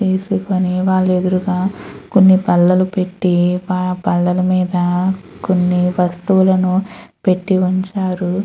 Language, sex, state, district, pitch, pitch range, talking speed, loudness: Telugu, female, Andhra Pradesh, Chittoor, 185 Hz, 180-190 Hz, 80 wpm, -16 LUFS